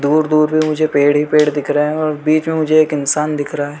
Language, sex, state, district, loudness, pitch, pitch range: Hindi, male, Jharkhand, Sahebganj, -15 LUFS, 150 Hz, 145-155 Hz